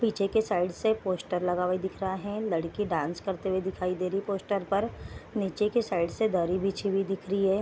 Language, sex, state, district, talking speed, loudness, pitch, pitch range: Hindi, female, Bihar, Darbhanga, 245 wpm, -29 LUFS, 195 Hz, 180-205 Hz